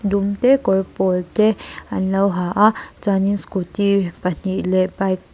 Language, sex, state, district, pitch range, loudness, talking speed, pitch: Mizo, female, Mizoram, Aizawl, 185-200 Hz, -19 LUFS, 170 wpm, 195 Hz